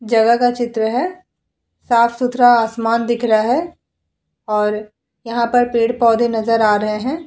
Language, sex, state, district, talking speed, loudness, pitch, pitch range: Hindi, female, Uttar Pradesh, Hamirpur, 140 wpm, -16 LUFS, 235 Hz, 225-245 Hz